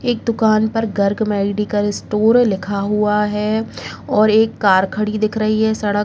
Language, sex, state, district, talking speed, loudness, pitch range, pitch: Hindi, female, Uttar Pradesh, Muzaffarnagar, 180 wpm, -17 LUFS, 205-220 Hz, 215 Hz